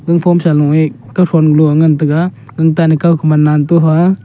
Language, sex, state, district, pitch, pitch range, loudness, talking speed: Wancho, male, Arunachal Pradesh, Longding, 160 Hz, 150-170 Hz, -11 LUFS, 185 wpm